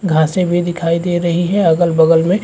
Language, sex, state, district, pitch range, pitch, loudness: Hindi, male, Chhattisgarh, Bastar, 165-180 Hz, 175 Hz, -14 LUFS